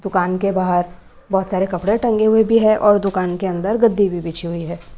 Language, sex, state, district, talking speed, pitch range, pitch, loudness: Hindi, female, Maharashtra, Gondia, 230 wpm, 180-215 Hz, 190 Hz, -17 LUFS